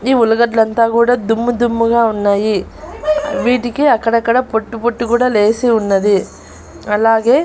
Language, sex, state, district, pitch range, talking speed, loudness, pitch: Telugu, female, Andhra Pradesh, Annamaya, 220-245 Hz, 115 wpm, -14 LUFS, 230 Hz